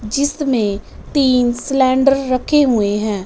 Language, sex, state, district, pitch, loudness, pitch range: Hindi, female, Punjab, Fazilka, 255 Hz, -16 LUFS, 215-275 Hz